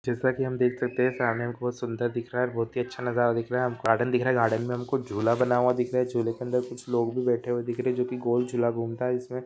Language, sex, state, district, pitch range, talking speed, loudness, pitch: Hindi, male, Maharashtra, Pune, 120-125 Hz, 305 wpm, -27 LUFS, 125 Hz